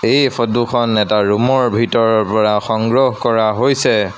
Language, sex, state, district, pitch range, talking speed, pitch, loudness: Assamese, male, Assam, Sonitpur, 110-125 Hz, 155 wpm, 115 Hz, -14 LUFS